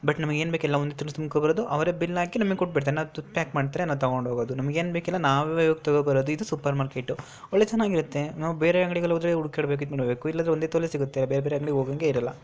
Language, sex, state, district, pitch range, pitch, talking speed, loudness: Kannada, female, Karnataka, Dharwad, 140-165 Hz, 155 Hz, 225 wpm, -26 LUFS